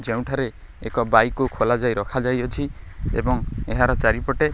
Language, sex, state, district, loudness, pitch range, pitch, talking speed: Odia, male, Odisha, Khordha, -22 LUFS, 115-130 Hz, 125 Hz, 160 wpm